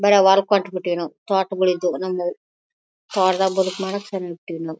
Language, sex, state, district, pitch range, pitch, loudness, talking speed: Kannada, female, Karnataka, Bellary, 175-195 Hz, 190 Hz, -21 LUFS, 125 wpm